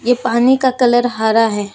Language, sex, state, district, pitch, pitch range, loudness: Hindi, female, Jharkhand, Deoghar, 240 Hz, 220-250 Hz, -14 LUFS